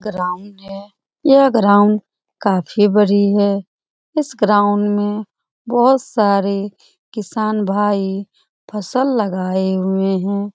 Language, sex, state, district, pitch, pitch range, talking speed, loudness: Hindi, female, Bihar, Lakhisarai, 205 Hz, 195-215 Hz, 100 wpm, -16 LUFS